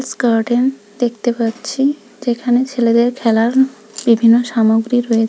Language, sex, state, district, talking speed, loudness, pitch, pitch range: Bengali, female, West Bengal, Kolkata, 100 wpm, -15 LUFS, 240 Hz, 230-250 Hz